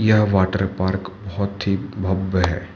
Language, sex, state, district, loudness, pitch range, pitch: Hindi, male, Manipur, Imphal West, -21 LUFS, 95-100 Hz, 95 Hz